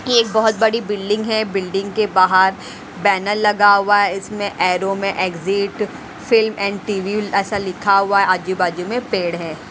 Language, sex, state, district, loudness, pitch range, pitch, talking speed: Hindi, female, Haryana, Rohtak, -17 LUFS, 190-210 Hz, 200 Hz, 175 wpm